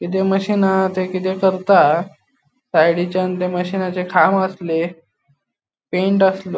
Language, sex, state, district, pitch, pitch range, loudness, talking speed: Konkani, male, Goa, North and South Goa, 185 Hz, 175-190 Hz, -17 LUFS, 110 wpm